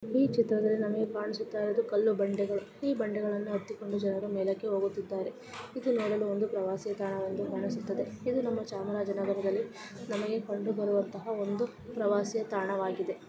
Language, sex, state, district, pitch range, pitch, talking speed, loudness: Kannada, female, Karnataka, Chamarajanagar, 200-220 Hz, 210 Hz, 95 wpm, -32 LUFS